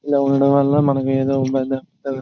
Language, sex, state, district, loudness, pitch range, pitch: Telugu, male, Andhra Pradesh, Chittoor, -18 LUFS, 135-140 Hz, 135 Hz